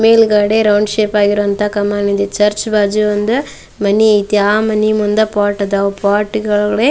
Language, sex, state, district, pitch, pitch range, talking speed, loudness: Kannada, female, Karnataka, Dharwad, 210 Hz, 205-215 Hz, 175 wpm, -13 LUFS